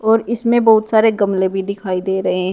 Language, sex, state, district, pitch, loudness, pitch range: Hindi, female, Uttar Pradesh, Shamli, 205 Hz, -16 LUFS, 190-225 Hz